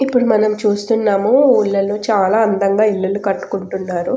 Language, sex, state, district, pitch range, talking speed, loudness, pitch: Telugu, female, Telangana, Nalgonda, 195-220 Hz, 115 wpm, -15 LUFS, 210 Hz